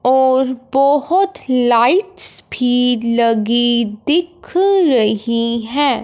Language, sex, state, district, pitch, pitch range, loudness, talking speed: Hindi, female, Punjab, Fazilka, 255 Hz, 235-295 Hz, -15 LUFS, 80 wpm